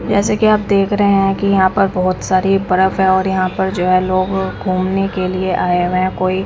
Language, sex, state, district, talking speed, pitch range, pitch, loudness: Hindi, female, Punjab, Kapurthala, 240 wpm, 185-195 Hz, 190 Hz, -15 LUFS